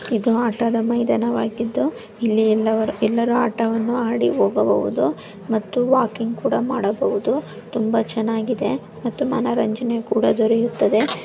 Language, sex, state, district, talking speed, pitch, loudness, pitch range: Kannada, female, Karnataka, Mysore, 110 wpm, 230 Hz, -20 LUFS, 220-240 Hz